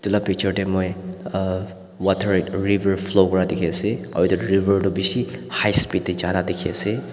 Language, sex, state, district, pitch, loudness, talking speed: Nagamese, male, Nagaland, Dimapur, 95 Hz, -21 LUFS, 200 wpm